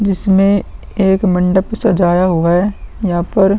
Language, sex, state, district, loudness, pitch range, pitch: Hindi, male, Uttar Pradesh, Muzaffarnagar, -14 LUFS, 180-200 Hz, 190 Hz